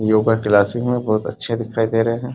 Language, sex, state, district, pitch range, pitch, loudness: Hindi, male, Bihar, Sitamarhi, 110-115 Hz, 115 Hz, -18 LUFS